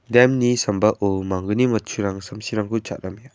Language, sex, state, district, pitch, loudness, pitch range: Garo, male, Meghalaya, West Garo Hills, 105 Hz, -21 LUFS, 100-120 Hz